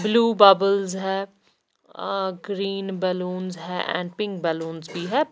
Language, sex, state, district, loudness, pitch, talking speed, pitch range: Hindi, female, Bihar, Patna, -23 LUFS, 195 Hz, 125 wpm, 180-200 Hz